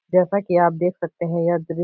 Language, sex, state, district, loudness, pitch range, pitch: Hindi, male, Uttar Pradesh, Etah, -21 LUFS, 170-180 Hz, 175 Hz